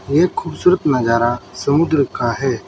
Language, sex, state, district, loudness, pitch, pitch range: Hindi, male, Uttar Pradesh, Saharanpur, -17 LUFS, 135 Hz, 120-155 Hz